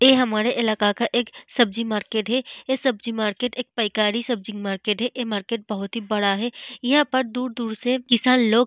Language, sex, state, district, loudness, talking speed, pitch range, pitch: Hindi, female, Bihar, Vaishali, -23 LUFS, 195 wpm, 215-250 Hz, 235 Hz